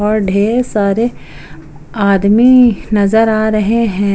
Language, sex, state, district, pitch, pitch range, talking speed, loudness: Hindi, female, Jharkhand, Palamu, 215 Hz, 200-225 Hz, 115 wpm, -12 LUFS